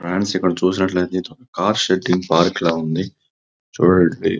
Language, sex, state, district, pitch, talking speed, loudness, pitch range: Telugu, male, Andhra Pradesh, Visakhapatnam, 90 Hz, 165 wpm, -18 LUFS, 85-95 Hz